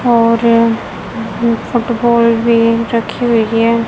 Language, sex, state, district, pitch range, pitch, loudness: Hindi, female, Haryana, Jhajjar, 230-235 Hz, 230 Hz, -13 LUFS